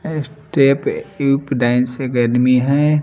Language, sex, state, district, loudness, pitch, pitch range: Hindi, male, Bihar, Patna, -17 LUFS, 135 Hz, 125-145 Hz